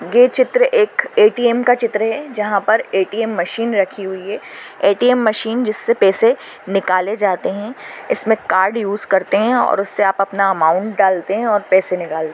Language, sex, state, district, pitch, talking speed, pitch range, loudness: Hindi, female, Maharashtra, Nagpur, 210 Hz, 175 wpm, 195-230 Hz, -16 LUFS